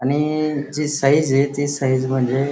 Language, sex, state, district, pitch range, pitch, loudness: Marathi, male, Maharashtra, Dhule, 135-150 Hz, 140 Hz, -19 LUFS